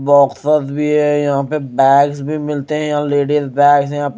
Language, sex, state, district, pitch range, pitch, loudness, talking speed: Hindi, male, Odisha, Malkangiri, 140-150 Hz, 145 Hz, -15 LUFS, 230 wpm